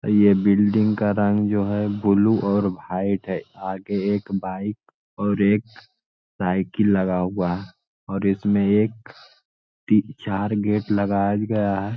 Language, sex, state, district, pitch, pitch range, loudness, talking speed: Hindi, male, Bihar, Jamui, 100 Hz, 95-105 Hz, -22 LUFS, 140 wpm